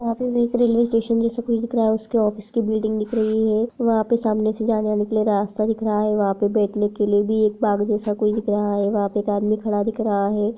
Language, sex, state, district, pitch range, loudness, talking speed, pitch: Hindi, female, Jharkhand, Jamtara, 210-230 Hz, -21 LUFS, 280 wpm, 215 Hz